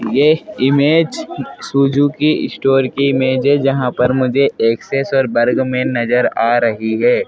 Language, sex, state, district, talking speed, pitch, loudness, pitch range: Hindi, male, Madhya Pradesh, Dhar, 150 wpm, 135 Hz, -15 LUFS, 125-145 Hz